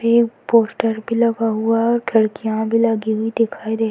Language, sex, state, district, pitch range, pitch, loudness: Hindi, female, Uttar Pradesh, Varanasi, 220-230 Hz, 225 Hz, -18 LUFS